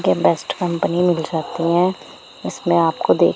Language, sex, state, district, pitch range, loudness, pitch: Hindi, female, Punjab, Pathankot, 165-180 Hz, -19 LUFS, 170 Hz